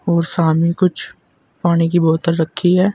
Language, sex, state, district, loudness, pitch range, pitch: Hindi, male, Uttar Pradesh, Saharanpur, -16 LUFS, 165-175 Hz, 170 Hz